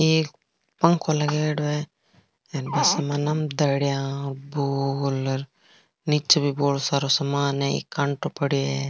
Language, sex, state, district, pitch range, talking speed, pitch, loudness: Marwari, female, Rajasthan, Nagaur, 140-150 Hz, 95 wpm, 140 Hz, -24 LUFS